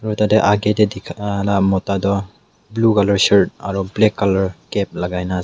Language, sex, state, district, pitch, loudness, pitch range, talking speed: Nagamese, male, Nagaland, Dimapur, 100 Hz, -17 LUFS, 95-105 Hz, 200 wpm